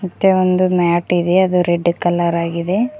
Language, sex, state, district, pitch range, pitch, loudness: Kannada, female, Karnataka, Koppal, 170-185 Hz, 180 Hz, -16 LUFS